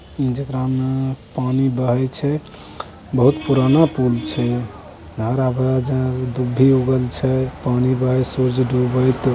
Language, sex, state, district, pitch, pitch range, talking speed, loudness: Angika, male, Bihar, Begusarai, 130 Hz, 125-130 Hz, 120 wpm, -19 LUFS